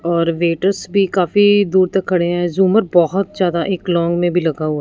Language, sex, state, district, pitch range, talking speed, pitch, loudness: Hindi, female, Punjab, Fazilka, 170-195 Hz, 210 wpm, 180 Hz, -16 LUFS